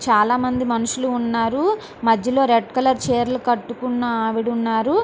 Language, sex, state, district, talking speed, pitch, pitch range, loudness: Telugu, female, Andhra Pradesh, Srikakulam, 130 wpm, 240 Hz, 230-255 Hz, -20 LUFS